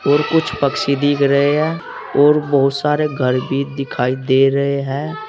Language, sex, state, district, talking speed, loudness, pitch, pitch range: Hindi, male, Uttar Pradesh, Saharanpur, 170 wpm, -16 LUFS, 140 Hz, 135-150 Hz